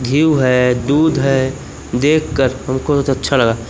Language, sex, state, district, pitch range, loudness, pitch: Hindi, male, Madhya Pradesh, Umaria, 125-145 Hz, -15 LUFS, 135 Hz